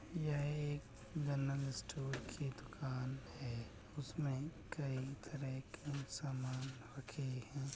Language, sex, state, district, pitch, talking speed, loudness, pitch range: Hindi, male, Uttar Pradesh, Budaun, 135 Hz, 110 wpm, -44 LUFS, 130-145 Hz